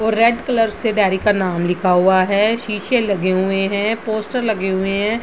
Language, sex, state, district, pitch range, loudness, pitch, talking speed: Hindi, female, Bihar, Madhepura, 190-220 Hz, -17 LUFS, 205 Hz, 205 wpm